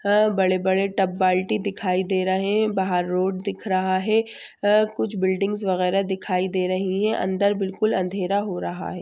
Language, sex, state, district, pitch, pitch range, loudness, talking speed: Hindi, female, Andhra Pradesh, Chittoor, 190 Hz, 185-205 Hz, -23 LUFS, 175 wpm